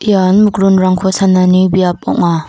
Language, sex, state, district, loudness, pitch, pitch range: Garo, female, Meghalaya, North Garo Hills, -11 LUFS, 185 Hz, 185-195 Hz